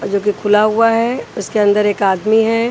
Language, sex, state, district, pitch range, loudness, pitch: Hindi, female, Haryana, Charkhi Dadri, 205-225 Hz, -14 LUFS, 210 Hz